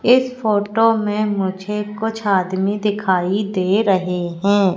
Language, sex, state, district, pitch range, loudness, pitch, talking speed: Hindi, female, Madhya Pradesh, Katni, 190-215 Hz, -18 LUFS, 205 Hz, 125 wpm